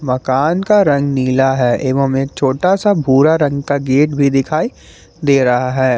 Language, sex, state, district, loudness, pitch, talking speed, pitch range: Hindi, male, Jharkhand, Garhwa, -14 LUFS, 135 Hz, 170 wpm, 130-150 Hz